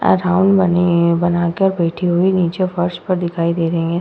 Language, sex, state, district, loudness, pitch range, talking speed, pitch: Hindi, female, Uttar Pradesh, Budaun, -16 LUFS, 170-185 Hz, 195 wpm, 175 Hz